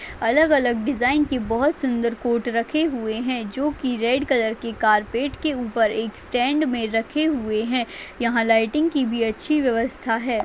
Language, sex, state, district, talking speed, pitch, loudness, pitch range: Hindi, female, Chhattisgarh, Bastar, 180 wpm, 240 Hz, -22 LUFS, 230-280 Hz